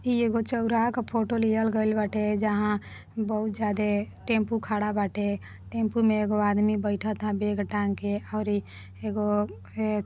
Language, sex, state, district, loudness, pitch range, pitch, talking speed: Bhojpuri, female, Uttar Pradesh, Deoria, -27 LUFS, 205-220 Hz, 210 Hz, 160 wpm